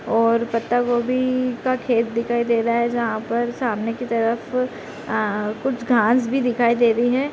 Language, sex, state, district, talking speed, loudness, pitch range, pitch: Hindi, female, Bihar, Gopalganj, 180 wpm, -21 LUFS, 230-250 Hz, 235 Hz